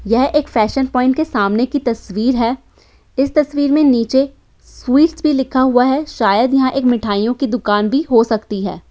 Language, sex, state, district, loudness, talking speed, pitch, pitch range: Hindi, female, Uttar Pradesh, Hamirpur, -15 LUFS, 190 wpm, 255 Hz, 230-275 Hz